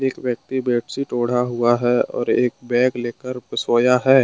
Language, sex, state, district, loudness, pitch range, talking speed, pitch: Hindi, male, Jharkhand, Deoghar, -20 LUFS, 120-130 Hz, 170 wpm, 125 Hz